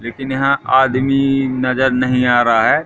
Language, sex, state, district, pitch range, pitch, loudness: Hindi, male, Madhya Pradesh, Katni, 125-135 Hz, 130 Hz, -15 LUFS